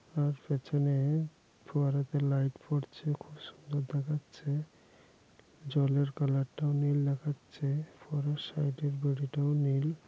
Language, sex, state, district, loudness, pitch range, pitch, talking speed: Bengali, male, West Bengal, Dakshin Dinajpur, -33 LUFS, 140-150 Hz, 145 Hz, 120 wpm